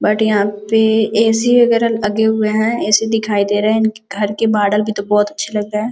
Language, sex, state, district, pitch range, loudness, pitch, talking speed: Hindi, female, Uttar Pradesh, Gorakhpur, 210-220 Hz, -15 LUFS, 215 Hz, 235 wpm